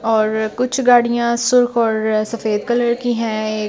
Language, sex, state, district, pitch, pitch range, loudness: Hindi, female, Delhi, New Delhi, 230 Hz, 220-240 Hz, -17 LUFS